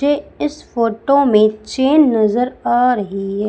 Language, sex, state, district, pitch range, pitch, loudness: Hindi, female, Madhya Pradesh, Umaria, 215-280 Hz, 240 Hz, -15 LUFS